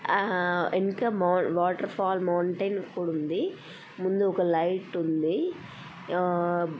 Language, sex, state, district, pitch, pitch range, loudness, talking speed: Telugu, female, Telangana, Karimnagar, 180 Hz, 175-190 Hz, -27 LUFS, 125 wpm